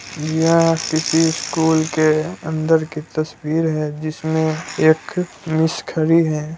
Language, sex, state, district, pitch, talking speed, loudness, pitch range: Hindi, male, Bihar, Muzaffarpur, 160 Hz, 90 wpm, -18 LUFS, 155-165 Hz